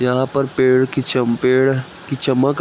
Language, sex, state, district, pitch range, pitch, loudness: Hindi, male, Jharkhand, Jamtara, 125-135 Hz, 130 Hz, -17 LUFS